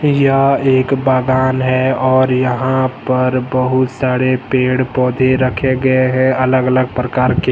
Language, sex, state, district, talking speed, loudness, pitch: Hindi, male, Jharkhand, Deoghar, 145 wpm, -14 LUFS, 130 Hz